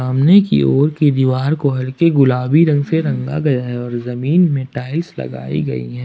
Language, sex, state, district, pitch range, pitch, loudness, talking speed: Hindi, male, Jharkhand, Ranchi, 125-155 Hz, 130 Hz, -16 LUFS, 200 wpm